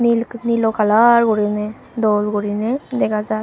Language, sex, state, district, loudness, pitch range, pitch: Chakma, female, Tripura, Unakoti, -17 LUFS, 210-235 Hz, 220 Hz